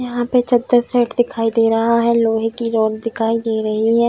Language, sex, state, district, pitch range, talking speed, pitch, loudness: Hindi, female, Bihar, Darbhanga, 225-240 Hz, 220 wpm, 230 Hz, -17 LUFS